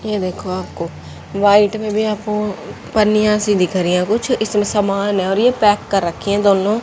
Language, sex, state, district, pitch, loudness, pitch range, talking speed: Hindi, female, Haryana, Jhajjar, 205 Hz, -16 LUFS, 195-215 Hz, 210 wpm